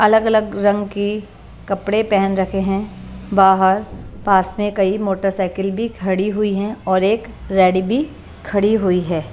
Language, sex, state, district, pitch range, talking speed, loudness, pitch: Hindi, female, Punjab, Pathankot, 190-210 Hz, 150 wpm, -18 LUFS, 195 Hz